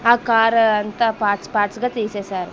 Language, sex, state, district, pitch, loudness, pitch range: Telugu, female, Andhra Pradesh, Sri Satya Sai, 220 Hz, -18 LUFS, 205-230 Hz